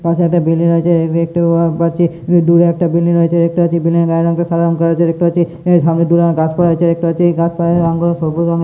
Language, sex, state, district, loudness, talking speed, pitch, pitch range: Bengali, male, West Bengal, Purulia, -13 LUFS, 230 wpm, 170 Hz, 165-170 Hz